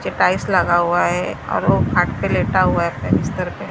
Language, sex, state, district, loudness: Hindi, female, Maharashtra, Mumbai Suburban, -18 LUFS